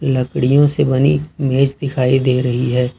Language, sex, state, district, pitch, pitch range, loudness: Hindi, male, Jharkhand, Ranchi, 135 Hz, 125-140 Hz, -16 LUFS